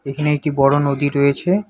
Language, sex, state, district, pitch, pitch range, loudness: Bengali, male, West Bengal, Alipurduar, 145 Hz, 140-150 Hz, -17 LUFS